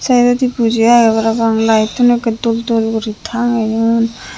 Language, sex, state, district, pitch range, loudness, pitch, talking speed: Chakma, female, Tripura, Unakoti, 225-240 Hz, -13 LUFS, 230 Hz, 150 wpm